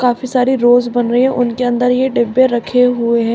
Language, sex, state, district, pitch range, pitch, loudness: Hindi, female, Uttar Pradesh, Shamli, 240-255 Hz, 245 Hz, -13 LUFS